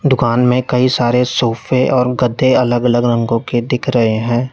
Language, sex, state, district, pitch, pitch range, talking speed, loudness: Hindi, male, Uttar Pradesh, Lalitpur, 125 Hz, 120-130 Hz, 185 wpm, -14 LUFS